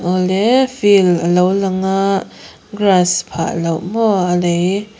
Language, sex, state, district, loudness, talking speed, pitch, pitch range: Mizo, female, Mizoram, Aizawl, -15 LUFS, 145 wpm, 190 Hz, 180-205 Hz